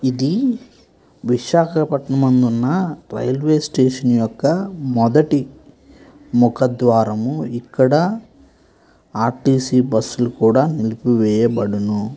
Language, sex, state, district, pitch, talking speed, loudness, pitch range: Telugu, male, Andhra Pradesh, Visakhapatnam, 130 Hz, 60 wpm, -17 LUFS, 120-150 Hz